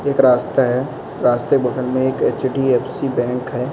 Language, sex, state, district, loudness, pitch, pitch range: Hindi, male, West Bengal, Kolkata, -18 LUFS, 130 Hz, 125-135 Hz